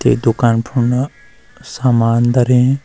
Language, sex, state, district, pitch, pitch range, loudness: Garhwali, male, Uttarakhand, Uttarkashi, 125 Hz, 120-130 Hz, -14 LUFS